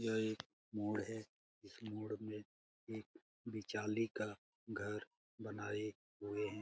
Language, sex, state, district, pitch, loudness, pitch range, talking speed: Hindi, male, Bihar, Lakhisarai, 105 Hz, -45 LUFS, 105-110 Hz, 125 wpm